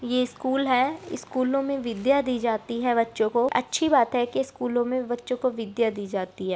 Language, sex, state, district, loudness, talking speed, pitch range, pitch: Hindi, female, Uttar Pradesh, Deoria, -25 LUFS, 210 wpm, 230-260 Hz, 245 Hz